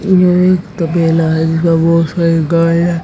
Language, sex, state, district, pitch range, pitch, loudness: Hindi, female, Haryana, Jhajjar, 165-175 Hz, 165 Hz, -12 LUFS